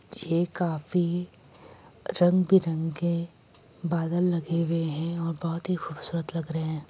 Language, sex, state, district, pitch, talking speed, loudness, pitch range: Hindi, female, Uttar Pradesh, Jyotiba Phule Nagar, 170 Hz, 130 wpm, -27 LUFS, 165-175 Hz